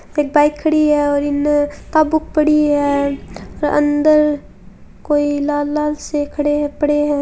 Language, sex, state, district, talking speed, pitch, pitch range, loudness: Hindi, female, Rajasthan, Churu, 160 wpm, 295 Hz, 290-300 Hz, -16 LUFS